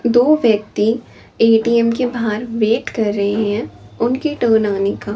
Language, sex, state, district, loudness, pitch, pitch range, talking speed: Hindi, female, Chhattisgarh, Raipur, -16 LUFS, 225 Hz, 210-235 Hz, 140 wpm